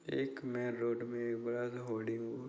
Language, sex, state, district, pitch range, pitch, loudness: Hindi, male, Chhattisgarh, Bastar, 115-125 Hz, 120 Hz, -39 LUFS